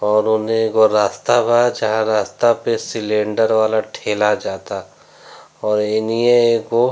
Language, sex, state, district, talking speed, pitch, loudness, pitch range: Bhojpuri, male, Bihar, Gopalganj, 140 wpm, 110 Hz, -17 LUFS, 105-115 Hz